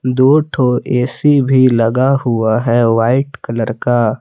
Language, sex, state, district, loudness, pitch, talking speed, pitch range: Hindi, male, Jharkhand, Palamu, -13 LUFS, 125 Hz, 140 wpm, 115-130 Hz